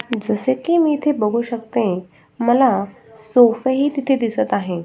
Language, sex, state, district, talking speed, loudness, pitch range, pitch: Marathi, female, Maharashtra, Sindhudurg, 135 wpm, -18 LUFS, 215-260 Hz, 235 Hz